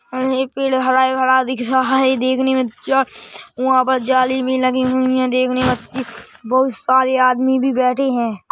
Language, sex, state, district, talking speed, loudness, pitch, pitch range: Hindi, female, Chhattisgarh, Rajnandgaon, 190 wpm, -17 LUFS, 260 Hz, 255-260 Hz